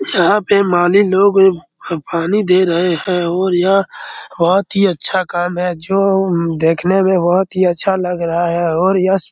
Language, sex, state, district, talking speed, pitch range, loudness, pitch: Hindi, male, Bihar, Araria, 175 wpm, 175-195 Hz, -14 LUFS, 185 Hz